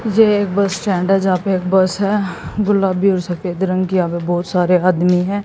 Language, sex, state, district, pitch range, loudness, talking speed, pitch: Hindi, female, Haryana, Jhajjar, 180-200 Hz, -16 LUFS, 230 wpm, 185 Hz